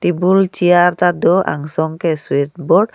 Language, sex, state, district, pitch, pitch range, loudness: Karbi, female, Assam, Karbi Anglong, 175 Hz, 160-180 Hz, -15 LUFS